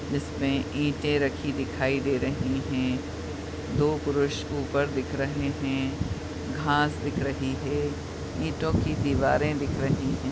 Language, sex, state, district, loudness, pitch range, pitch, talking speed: Hindi, male, Bihar, Madhepura, -28 LUFS, 95-140 Hz, 135 Hz, 135 wpm